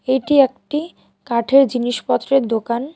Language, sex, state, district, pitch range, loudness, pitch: Bengali, female, West Bengal, Alipurduar, 235-275 Hz, -17 LUFS, 260 Hz